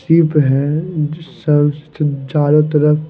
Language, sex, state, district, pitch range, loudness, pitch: Hindi, male, Himachal Pradesh, Shimla, 145-155 Hz, -15 LUFS, 150 Hz